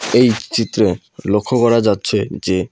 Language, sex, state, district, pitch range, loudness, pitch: Bengali, male, West Bengal, Alipurduar, 100-120 Hz, -16 LUFS, 110 Hz